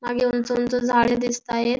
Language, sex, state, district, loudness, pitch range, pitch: Marathi, female, Maharashtra, Pune, -22 LUFS, 240-245 Hz, 245 Hz